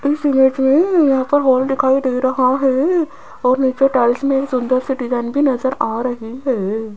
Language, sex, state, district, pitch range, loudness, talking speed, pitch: Hindi, female, Rajasthan, Jaipur, 250-275 Hz, -16 LUFS, 190 wpm, 265 Hz